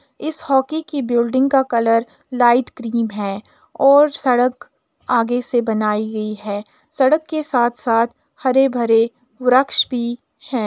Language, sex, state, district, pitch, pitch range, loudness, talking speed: Hindi, female, Uttar Pradesh, Jalaun, 245 Hz, 230-270 Hz, -18 LUFS, 130 wpm